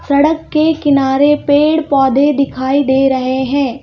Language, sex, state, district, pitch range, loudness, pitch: Hindi, female, Madhya Pradesh, Bhopal, 270-295 Hz, -12 LUFS, 280 Hz